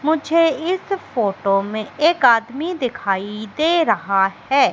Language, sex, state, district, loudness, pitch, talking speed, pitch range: Hindi, female, Madhya Pradesh, Katni, -19 LUFS, 270 Hz, 125 wpm, 205-330 Hz